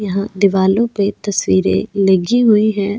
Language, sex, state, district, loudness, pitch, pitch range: Hindi, female, Goa, North and South Goa, -15 LUFS, 200 Hz, 190-210 Hz